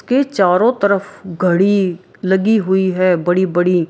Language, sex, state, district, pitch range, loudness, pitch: Maithili, female, Bihar, Araria, 180-200 Hz, -15 LUFS, 185 Hz